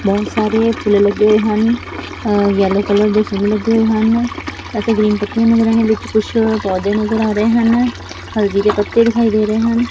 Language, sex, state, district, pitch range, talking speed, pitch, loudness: Punjabi, female, Punjab, Fazilka, 210-225 Hz, 190 wpm, 215 Hz, -14 LUFS